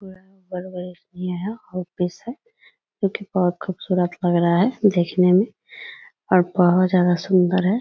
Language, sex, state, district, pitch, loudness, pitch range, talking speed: Hindi, male, Bihar, Purnia, 185 Hz, -20 LUFS, 180-200 Hz, 140 wpm